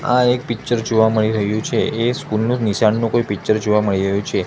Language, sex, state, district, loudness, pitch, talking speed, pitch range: Gujarati, male, Gujarat, Gandhinagar, -18 LUFS, 110 Hz, 230 wpm, 105-120 Hz